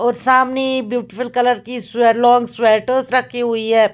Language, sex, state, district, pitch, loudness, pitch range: Hindi, female, Bihar, Patna, 245 Hz, -16 LUFS, 230-250 Hz